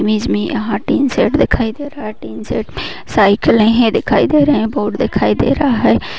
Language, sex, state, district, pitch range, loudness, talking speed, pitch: Hindi, female, Uttar Pradesh, Muzaffarnagar, 215-285 Hz, -14 LUFS, 225 wpm, 230 Hz